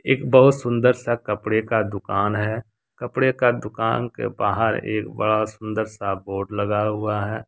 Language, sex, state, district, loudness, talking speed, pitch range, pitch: Hindi, male, Jharkhand, Deoghar, -22 LUFS, 170 wpm, 105-120 Hz, 110 Hz